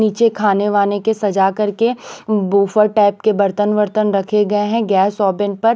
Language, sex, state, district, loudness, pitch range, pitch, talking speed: Hindi, female, Punjab, Pathankot, -16 LUFS, 200-215 Hz, 205 Hz, 175 wpm